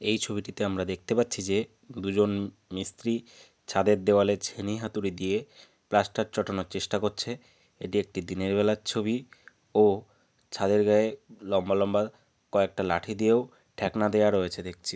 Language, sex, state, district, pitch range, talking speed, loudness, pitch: Bengali, male, West Bengal, North 24 Parganas, 95-110 Hz, 140 wpm, -28 LUFS, 105 Hz